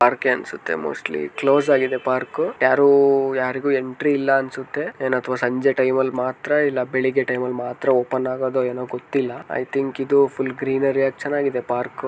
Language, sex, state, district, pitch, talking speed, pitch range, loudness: Kannada, male, Karnataka, Mysore, 130 Hz, 170 wpm, 125-135 Hz, -21 LUFS